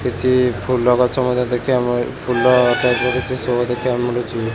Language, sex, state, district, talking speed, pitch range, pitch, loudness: Odia, male, Odisha, Khordha, 145 wpm, 120-125 Hz, 125 Hz, -17 LUFS